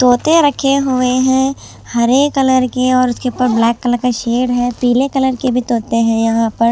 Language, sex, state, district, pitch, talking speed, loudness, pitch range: Hindi, female, Chhattisgarh, Raipur, 250 Hz, 205 wpm, -14 LUFS, 235-260 Hz